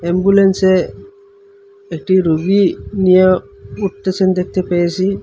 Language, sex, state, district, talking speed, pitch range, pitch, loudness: Bengali, male, Assam, Hailakandi, 80 wpm, 180-200 Hz, 185 Hz, -14 LUFS